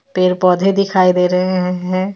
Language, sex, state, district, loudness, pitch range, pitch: Hindi, female, Jharkhand, Ranchi, -14 LUFS, 180-190 Hz, 185 Hz